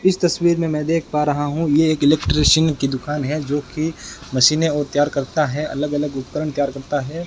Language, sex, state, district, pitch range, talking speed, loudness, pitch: Hindi, male, Rajasthan, Bikaner, 145-160 Hz, 215 wpm, -19 LUFS, 150 Hz